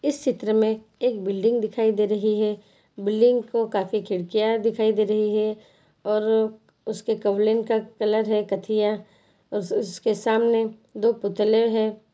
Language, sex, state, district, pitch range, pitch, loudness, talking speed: Hindi, female, Bihar, Jahanabad, 210-225 Hz, 220 Hz, -23 LUFS, 150 wpm